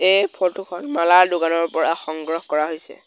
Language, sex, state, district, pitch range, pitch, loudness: Assamese, male, Assam, Sonitpur, 160-180 Hz, 165 Hz, -19 LUFS